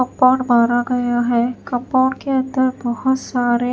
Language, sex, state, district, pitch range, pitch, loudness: Hindi, female, Himachal Pradesh, Shimla, 240-260 Hz, 250 Hz, -18 LUFS